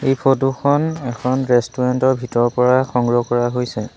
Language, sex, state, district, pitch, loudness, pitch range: Assamese, male, Assam, Sonitpur, 125 Hz, -17 LUFS, 120-135 Hz